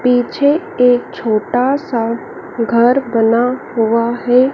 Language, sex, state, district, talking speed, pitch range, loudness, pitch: Hindi, female, Madhya Pradesh, Dhar, 105 wpm, 230-255 Hz, -15 LUFS, 245 Hz